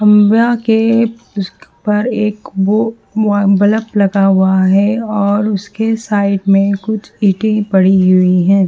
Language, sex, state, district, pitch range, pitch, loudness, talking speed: Hindi, female, Haryana, Charkhi Dadri, 195-220 Hz, 205 Hz, -13 LUFS, 105 wpm